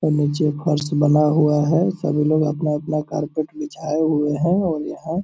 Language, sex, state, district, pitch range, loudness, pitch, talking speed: Hindi, male, Bihar, Purnia, 150-160 Hz, -20 LUFS, 150 Hz, 185 wpm